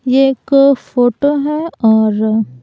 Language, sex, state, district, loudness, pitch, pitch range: Hindi, female, Bihar, Patna, -13 LUFS, 255 Hz, 220-280 Hz